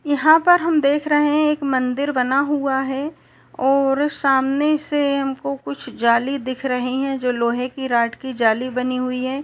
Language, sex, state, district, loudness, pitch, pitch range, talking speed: Hindi, female, Uttar Pradesh, Etah, -19 LUFS, 270 Hz, 255-290 Hz, 170 wpm